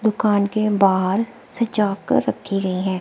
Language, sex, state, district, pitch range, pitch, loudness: Hindi, female, Himachal Pradesh, Shimla, 195-220 Hz, 205 Hz, -20 LUFS